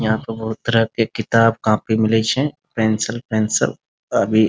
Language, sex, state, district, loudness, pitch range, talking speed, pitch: Maithili, male, Bihar, Muzaffarpur, -19 LUFS, 110-115 Hz, 160 wpm, 110 Hz